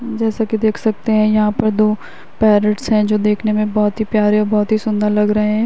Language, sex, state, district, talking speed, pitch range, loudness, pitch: Hindi, female, Uttar Pradesh, Varanasi, 245 wpm, 210-220 Hz, -16 LUFS, 215 Hz